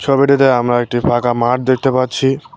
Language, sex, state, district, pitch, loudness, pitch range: Bengali, male, West Bengal, Cooch Behar, 130 Hz, -14 LUFS, 120-135 Hz